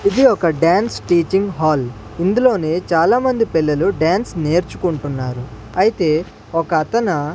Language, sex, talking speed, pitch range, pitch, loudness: Telugu, male, 100 wpm, 155-195 Hz, 165 Hz, -17 LUFS